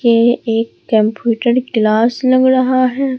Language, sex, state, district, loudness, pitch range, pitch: Hindi, male, Bihar, Katihar, -14 LUFS, 230-255 Hz, 240 Hz